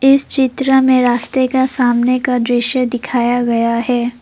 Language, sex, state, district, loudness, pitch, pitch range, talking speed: Hindi, female, Assam, Kamrup Metropolitan, -14 LUFS, 250 Hz, 240-260 Hz, 155 wpm